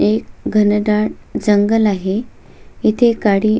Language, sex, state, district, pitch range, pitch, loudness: Marathi, female, Maharashtra, Sindhudurg, 200-220 Hz, 210 Hz, -16 LUFS